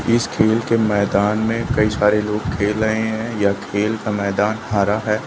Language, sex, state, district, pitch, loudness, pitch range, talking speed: Hindi, male, Uttar Pradesh, Lucknow, 105 Hz, -19 LUFS, 105-110 Hz, 195 wpm